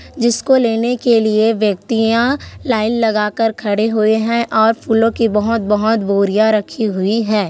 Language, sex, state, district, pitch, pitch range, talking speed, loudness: Hindi, female, Chhattisgarh, Korba, 225 Hz, 215-230 Hz, 160 wpm, -15 LUFS